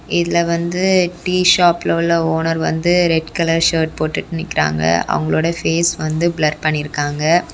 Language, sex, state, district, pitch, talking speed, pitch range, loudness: Tamil, female, Tamil Nadu, Kanyakumari, 165 Hz, 135 wpm, 155-170 Hz, -16 LUFS